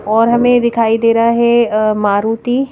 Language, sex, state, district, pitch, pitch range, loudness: Hindi, female, Madhya Pradesh, Bhopal, 230 Hz, 220-235 Hz, -12 LUFS